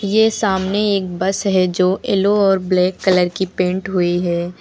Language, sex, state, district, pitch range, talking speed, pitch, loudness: Hindi, female, Uttar Pradesh, Lucknow, 180-200 Hz, 180 wpm, 190 Hz, -17 LUFS